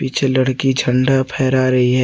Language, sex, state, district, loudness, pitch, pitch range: Hindi, male, Jharkhand, Garhwa, -16 LUFS, 130 Hz, 130-135 Hz